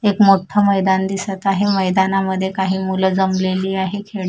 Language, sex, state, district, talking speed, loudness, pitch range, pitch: Marathi, female, Maharashtra, Mumbai Suburban, 155 wpm, -17 LUFS, 190-195 Hz, 190 Hz